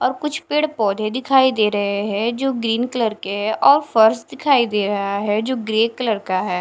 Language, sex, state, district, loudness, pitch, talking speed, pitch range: Hindi, female, Punjab, Fazilka, -18 LUFS, 225 Hz, 215 wpm, 205-260 Hz